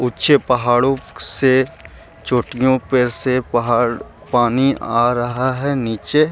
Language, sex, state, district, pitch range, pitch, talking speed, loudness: Hindi, male, Bihar, Gaya, 120-130 Hz, 125 Hz, 125 wpm, -17 LUFS